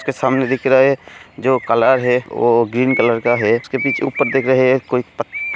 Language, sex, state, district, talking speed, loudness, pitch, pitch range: Hindi, male, Bihar, Kishanganj, 250 wpm, -16 LUFS, 130 Hz, 125-135 Hz